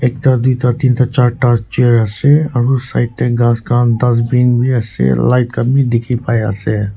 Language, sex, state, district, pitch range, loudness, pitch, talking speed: Nagamese, male, Nagaland, Kohima, 115-125 Hz, -13 LUFS, 120 Hz, 170 wpm